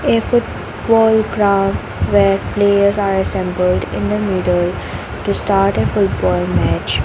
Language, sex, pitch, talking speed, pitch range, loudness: English, female, 195 Hz, 145 wpm, 180-205 Hz, -16 LUFS